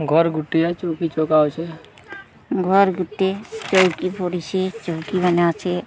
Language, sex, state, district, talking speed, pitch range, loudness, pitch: Odia, female, Odisha, Sambalpur, 125 wpm, 165-190 Hz, -20 LUFS, 180 Hz